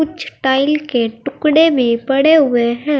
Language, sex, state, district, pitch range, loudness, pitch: Hindi, female, Uttar Pradesh, Saharanpur, 240-300 Hz, -14 LUFS, 280 Hz